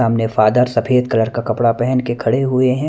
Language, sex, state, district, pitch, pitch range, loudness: Hindi, male, Punjab, Kapurthala, 120 Hz, 115-130 Hz, -16 LUFS